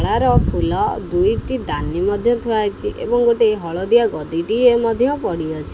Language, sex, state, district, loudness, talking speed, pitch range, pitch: Odia, male, Odisha, Khordha, -18 LUFS, 125 wpm, 175-290 Hz, 230 Hz